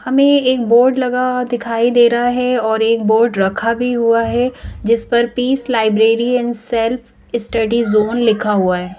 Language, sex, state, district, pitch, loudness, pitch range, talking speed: Hindi, female, Madhya Pradesh, Bhopal, 235 Hz, -15 LUFS, 225-245 Hz, 180 wpm